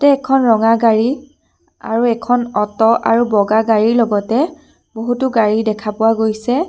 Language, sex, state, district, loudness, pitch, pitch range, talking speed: Assamese, female, Assam, Sonitpur, -15 LUFS, 225 Hz, 220-245 Hz, 145 wpm